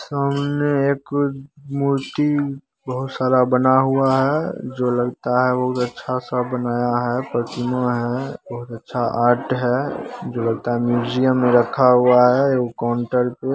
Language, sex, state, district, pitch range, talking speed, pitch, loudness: Maithili, male, Bihar, Begusarai, 120-135 Hz, 150 wpm, 125 Hz, -19 LUFS